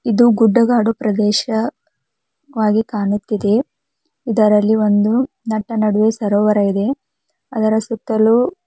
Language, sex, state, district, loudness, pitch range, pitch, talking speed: Kannada, female, Karnataka, Belgaum, -16 LUFS, 210-235 Hz, 220 Hz, 75 wpm